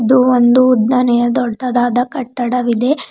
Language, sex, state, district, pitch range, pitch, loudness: Kannada, female, Karnataka, Bidar, 240-255 Hz, 245 Hz, -14 LUFS